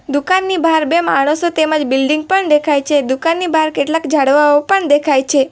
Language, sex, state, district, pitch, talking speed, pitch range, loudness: Gujarati, female, Gujarat, Valsad, 300 Hz, 175 wpm, 285-330 Hz, -13 LUFS